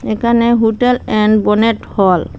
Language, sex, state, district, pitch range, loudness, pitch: Bengali, female, Assam, Hailakandi, 210-235 Hz, -13 LUFS, 220 Hz